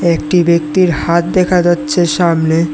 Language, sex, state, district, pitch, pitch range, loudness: Bengali, male, Tripura, West Tripura, 170 Hz, 165-175 Hz, -12 LUFS